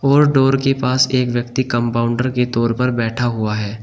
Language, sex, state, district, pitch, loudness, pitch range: Hindi, male, Uttar Pradesh, Shamli, 125 Hz, -17 LUFS, 115-130 Hz